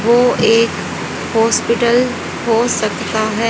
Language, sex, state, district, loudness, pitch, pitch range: Hindi, female, Haryana, Rohtak, -15 LUFS, 230 Hz, 225-240 Hz